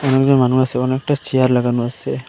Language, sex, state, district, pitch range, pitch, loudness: Bengali, male, Assam, Hailakandi, 125-135 Hz, 130 Hz, -17 LUFS